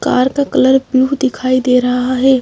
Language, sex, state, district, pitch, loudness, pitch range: Hindi, female, Madhya Pradesh, Bhopal, 260 Hz, -13 LUFS, 255-265 Hz